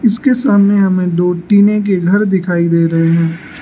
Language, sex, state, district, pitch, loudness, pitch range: Hindi, male, Arunachal Pradesh, Lower Dibang Valley, 185 Hz, -12 LUFS, 170-205 Hz